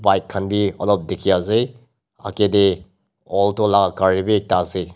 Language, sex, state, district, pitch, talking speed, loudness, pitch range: Nagamese, male, Nagaland, Dimapur, 100 Hz, 170 wpm, -18 LUFS, 95-105 Hz